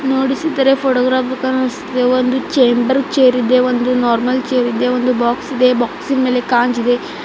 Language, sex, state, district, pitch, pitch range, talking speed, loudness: Kannada, female, Karnataka, Bidar, 255 Hz, 250-265 Hz, 165 wpm, -15 LUFS